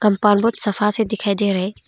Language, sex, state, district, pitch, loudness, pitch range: Hindi, female, Arunachal Pradesh, Longding, 210 Hz, -18 LUFS, 205-215 Hz